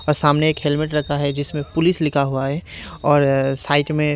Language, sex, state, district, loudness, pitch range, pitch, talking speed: Hindi, male, Haryana, Rohtak, -19 LUFS, 140-150 Hz, 145 Hz, 200 wpm